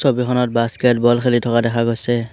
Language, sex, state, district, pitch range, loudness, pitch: Assamese, male, Assam, Hailakandi, 115-125 Hz, -17 LUFS, 120 Hz